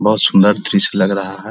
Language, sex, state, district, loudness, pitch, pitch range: Hindi, male, Bihar, Vaishali, -13 LUFS, 100 Hz, 95-105 Hz